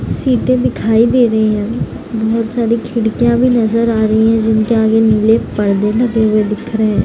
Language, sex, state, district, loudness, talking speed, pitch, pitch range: Hindi, female, Bihar, Gaya, -13 LUFS, 185 wpm, 225 Hz, 215-230 Hz